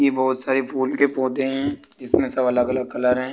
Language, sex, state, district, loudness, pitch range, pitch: Hindi, male, Uttar Pradesh, Budaun, -21 LUFS, 130-135 Hz, 130 Hz